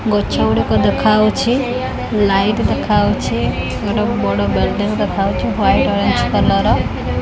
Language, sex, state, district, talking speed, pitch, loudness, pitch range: Odia, female, Odisha, Khordha, 110 wpm, 210 Hz, -16 LUFS, 195-220 Hz